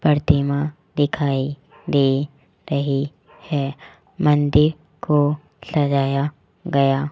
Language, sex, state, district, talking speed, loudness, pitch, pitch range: Hindi, male, Rajasthan, Jaipur, 85 wpm, -21 LUFS, 145 Hz, 140-150 Hz